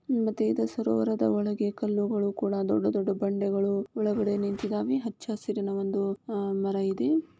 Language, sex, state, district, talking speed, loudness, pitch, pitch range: Kannada, female, Karnataka, Shimoga, 140 wpm, -28 LUFS, 200 Hz, 195-215 Hz